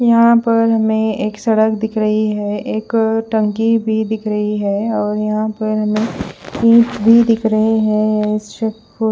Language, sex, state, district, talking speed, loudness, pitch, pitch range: Hindi, female, Punjab, Fazilka, 145 wpm, -15 LUFS, 220 Hz, 215-225 Hz